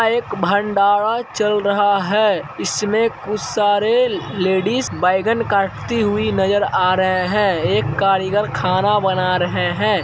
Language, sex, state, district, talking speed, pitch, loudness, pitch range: Hindi, male, Bihar, Araria, 130 wpm, 205 Hz, -17 LUFS, 185-210 Hz